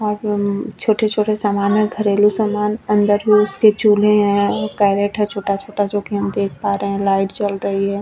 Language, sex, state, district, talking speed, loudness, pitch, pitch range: Hindi, female, Chhattisgarh, Bastar, 225 wpm, -17 LUFS, 205 Hz, 200-210 Hz